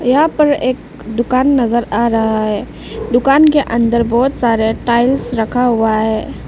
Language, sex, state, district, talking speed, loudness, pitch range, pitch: Hindi, female, Arunachal Pradesh, Lower Dibang Valley, 155 wpm, -14 LUFS, 225-265 Hz, 235 Hz